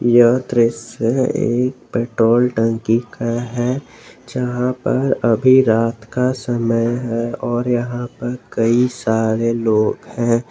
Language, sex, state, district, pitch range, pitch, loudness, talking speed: Hindi, male, Jharkhand, Garhwa, 115-125 Hz, 120 Hz, -18 LUFS, 120 wpm